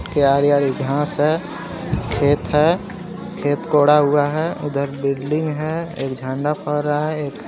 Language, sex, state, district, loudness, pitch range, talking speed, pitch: Hindi, male, Jharkhand, Garhwa, -19 LUFS, 140-155 Hz, 145 wpm, 145 Hz